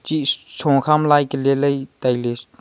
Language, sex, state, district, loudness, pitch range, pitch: Wancho, male, Arunachal Pradesh, Longding, -19 LUFS, 135-145 Hz, 140 Hz